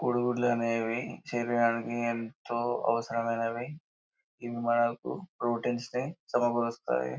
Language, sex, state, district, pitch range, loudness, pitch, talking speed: Telugu, male, Telangana, Karimnagar, 115-120 Hz, -31 LUFS, 120 Hz, 90 wpm